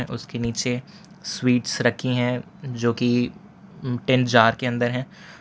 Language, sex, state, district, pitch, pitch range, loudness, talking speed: Hindi, male, Gujarat, Valsad, 125 Hz, 120-150 Hz, -23 LUFS, 135 wpm